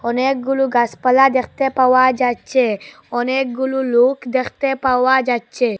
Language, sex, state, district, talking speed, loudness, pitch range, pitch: Bengali, female, Assam, Hailakandi, 105 wpm, -17 LUFS, 245-265 Hz, 255 Hz